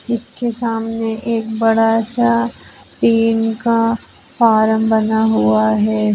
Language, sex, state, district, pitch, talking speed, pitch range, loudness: Hindi, female, Chhattisgarh, Jashpur, 225 Hz, 105 wpm, 220-230 Hz, -16 LUFS